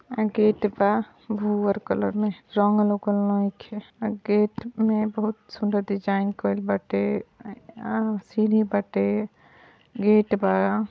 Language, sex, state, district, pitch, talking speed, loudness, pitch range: Bhojpuri, female, Uttar Pradesh, Ghazipur, 210 Hz, 110 wpm, -24 LUFS, 200-215 Hz